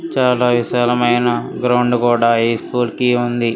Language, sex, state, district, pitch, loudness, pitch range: Telugu, male, Andhra Pradesh, Srikakulam, 120 Hz, -16 LUFS, 120-125 Hz